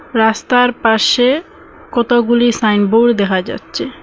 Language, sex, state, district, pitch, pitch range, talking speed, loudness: Bengali, female, Assam, Hailakandi, 235 Hz, 220-245 Hz, 105 wpm, -13 LUFS